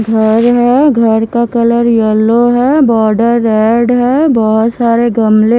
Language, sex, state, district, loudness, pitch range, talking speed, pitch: Hindi, female, Himachal Pradesh, Shimla, -10 LUFS, 220-240 Hz, 140 wpm, 235 Hz